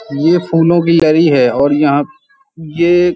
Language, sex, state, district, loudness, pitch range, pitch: Hindi, male, Uttar Pradesh, Hamirpur, -11 LUFS, 150-175 Hz, 165 Hz